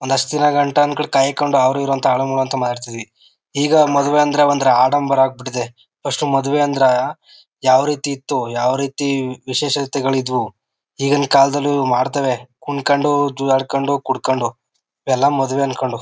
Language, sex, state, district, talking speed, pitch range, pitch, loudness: Kannada, male, Karnataka, Chamarajanagar, 115 wpm, 130-145 Hz, 135 Hz, -17 LUFS